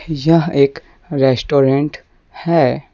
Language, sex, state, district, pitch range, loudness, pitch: Hindi, male, Jharkhand, Deoghar, 135-165 Hz, -15 LUFS, 145 Hz